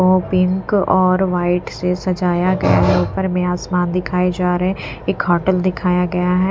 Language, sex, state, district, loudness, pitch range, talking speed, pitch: Hindi, female, Punjab, Pathankot, -17 LUFS, 180-185 Hz, 185 wpm, 180 Hz